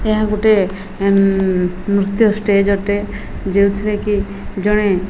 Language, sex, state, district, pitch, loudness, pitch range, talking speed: Odia, female, Odisha, Malkangiri, 200 Hz, -16 LUFS, 195-210 Hz, 105 wpm